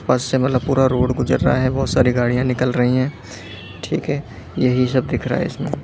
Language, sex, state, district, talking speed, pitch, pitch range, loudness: Hindi, male, Delhi, New Delhi, 215 wpm, 125 Hz, 125-130 Hz, -19 LUFS